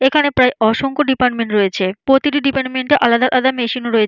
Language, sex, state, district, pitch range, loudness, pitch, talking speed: Bengali, female, West Bengal, Jalpaiguri, 230-270 Hz, -15 LUFS, 255 Hz, 175 wpm